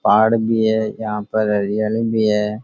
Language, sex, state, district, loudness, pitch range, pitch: Rajasthani, male, Rajasthan, Churu, -18 LUFS, 105-110 Hz, 110 Hz